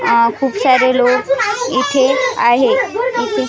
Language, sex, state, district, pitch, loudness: Marathi, female, Maharashtra, Washim, 275 Hz, -14 LUFS